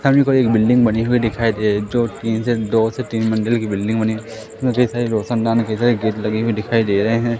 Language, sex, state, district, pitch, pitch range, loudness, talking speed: Hindi, male, Madhya Pradesh, Katni, 115 Hz, 110-120 Hz, -18 LUFS, 260 wpm